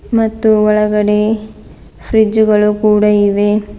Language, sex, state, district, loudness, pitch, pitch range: Kannada, female, Karnataka, Bidar, -12 LUFS, 210 Hz, 210-220 Hz